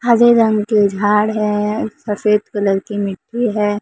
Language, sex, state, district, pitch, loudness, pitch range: Hindi, female, Maharashtra, Mumbai Suburban, 210 Hz, -16 LUFS, 205-220 Hz